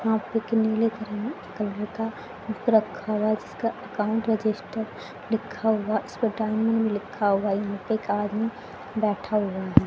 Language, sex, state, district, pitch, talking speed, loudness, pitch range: Hindi, female, Haryana, Charkhi Dadri, 220 Hz, 170 wpm, -26 LUFS, 210-225 Hz